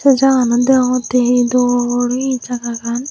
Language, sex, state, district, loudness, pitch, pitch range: Chakma, female, Tripura, Dhalai, -15 LUFS, 245 Hz, 245-255 Hz